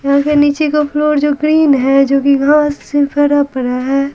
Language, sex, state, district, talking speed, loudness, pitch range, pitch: Hindi, female, Bihar, Patna, 190 wpm, -12 LUFS, 275-295 Hz, 285 Hz